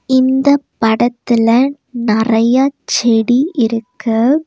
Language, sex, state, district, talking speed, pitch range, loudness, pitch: Tamil, female, Tamil Nadu, Nilgiris, 65 wpm, 225-265 Hz, -13 LUFS, 240 Hz